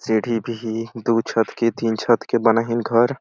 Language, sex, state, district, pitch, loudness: Awadhi, male, Chhattisgarh, Balrampur, 115 Hz, -20 LUFS